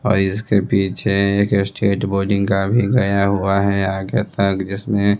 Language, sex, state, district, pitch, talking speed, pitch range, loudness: Hindi, male, Bihar, West Champaran, 100 Hz, 160 wpm, 95-100 Hz, -18 LUFS